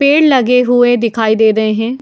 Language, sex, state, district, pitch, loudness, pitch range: Hindi, female, Bihar, Madhepura, 245 Hz, -11 LUFS, 220-255 Hz